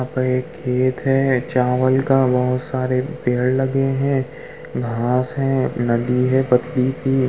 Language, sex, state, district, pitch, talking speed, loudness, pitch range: Hindi, male, Uttar Pradesh, Muzaffarnagar, 130 Hz, 140 wpm, -19 LUFS, 125-135 Hz